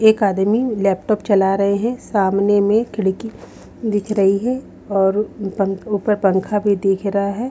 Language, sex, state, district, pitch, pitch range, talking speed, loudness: Hindi, female, Haryana, Rohtak, 205 Hz, 195-215 Hz, 150 wpm, -18 LUFS